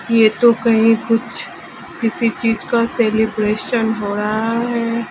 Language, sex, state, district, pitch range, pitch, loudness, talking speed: Hindi, female, Bihar, Patna, 220-235 Hz, 225 Hz, -17 LUFS, 130 wpm